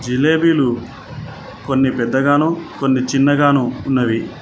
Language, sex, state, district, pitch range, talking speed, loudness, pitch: Telugu, male, Telangana, Mahabubabad, 130-145 Hz, 80 wpm, -16 LUFS, 135 Hz